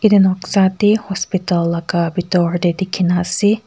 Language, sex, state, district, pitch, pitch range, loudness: Nagamese, female, Nagaland, Kohima, 185 Hz, 175-200 Hz, -16 LUFS